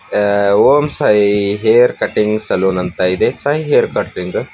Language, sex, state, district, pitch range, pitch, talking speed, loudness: Kannada, male, Karnataka, Bidar, 100-145 Hz, 105 Hz, 130 wpm, -14 LUFS